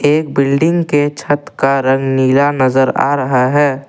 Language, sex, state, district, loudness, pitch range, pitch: Hindi, male, Assam, Kamrup Metropolitan, -13 LUFS, 135-145 Hz, 140 Hz